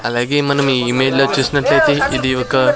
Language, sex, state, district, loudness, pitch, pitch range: Telugu, male, Andhra Pradesh, Sri Satya Sai, -15 LUFS, 130 Hz, 125-140 Hz